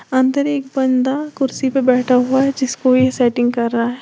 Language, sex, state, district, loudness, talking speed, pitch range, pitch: Hindi, female, Uttar Pradesh, Lalitpur, -16 LUFS, 210 wpm, 250-270 Hz, 260 Hz